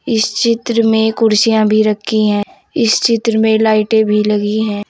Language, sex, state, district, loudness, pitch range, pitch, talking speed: Hindi, female, Uttar Pradesh, Saharanpur, -13 LUFS, 215-230 Hz, 220 Hz, 170 wpm